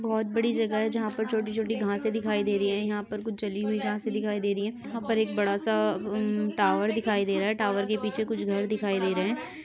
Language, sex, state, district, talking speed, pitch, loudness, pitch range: Hindi, female, Uttar Pradesh, Ghazipur, 255 wpm, 215 Hz, -28 LUFS, 205-220 Hz